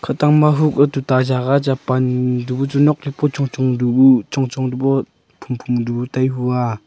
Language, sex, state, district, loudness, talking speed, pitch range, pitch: Wancho, male, Arunachal Pradesh, Longding, -17 LUFS, 190 wpm, 125-140 Hz, 130 Hz